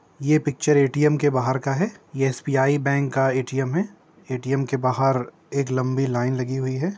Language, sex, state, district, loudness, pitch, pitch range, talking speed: Hindi, male, Uttar Pradesh, Jyotiba Phule Nagar, -22 LUFS, 135 Hz, 130-145 Hz, 180 wpm